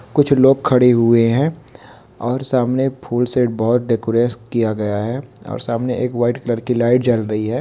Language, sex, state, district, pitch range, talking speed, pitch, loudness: Hindi, male, Bihar, Begusarai, 115-125 Hz, 190 wpm, 120 Hz, -17 LUFS